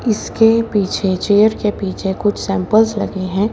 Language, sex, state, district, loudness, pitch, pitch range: Hindi, male, Haryana, Jhajjar, -16 LUFS, 205 Hz, 195-220 Hz